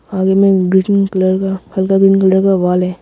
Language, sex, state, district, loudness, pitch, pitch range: Hindi, male, Arunachal Pradesh, Longding, -13 LUFS, 190 Hz, 185-195 Hz